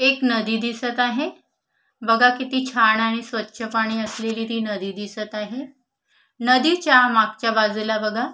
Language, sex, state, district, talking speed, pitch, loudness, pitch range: Marathi, female, Maharashtra, Solapur, 145 wpm, 225 Hz, -21 LUFS, 220-250 Hz